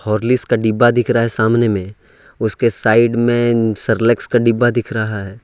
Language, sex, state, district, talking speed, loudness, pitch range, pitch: Hindi, male, Jharkhand, Ranchi, 190 wpm, -15 LUFS, 110-120 Hz, 115 Hz